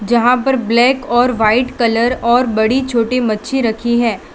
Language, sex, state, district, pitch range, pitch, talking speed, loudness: Hindi, female, Gujarat, Valsad, 230-255 Hz, 240 Hz, 165 wpm, -14 LUFS